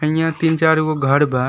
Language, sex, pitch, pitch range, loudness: Bhojpuri, male, 155 Hz, 140-160 Hz, -17 LUFS